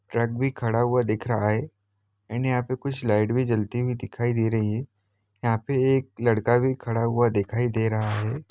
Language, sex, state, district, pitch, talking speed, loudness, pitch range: Hindi, male, Jharkhand, Jamtara, 115 Hz, 200 wpm, -25 LUFS, 110-125 Hz